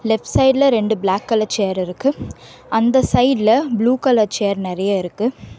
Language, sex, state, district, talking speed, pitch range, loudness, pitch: Tamil, female, Karnataka, Bangalore, 140 wpm, 200-250 Hz, -17 LUFS, 220 Hz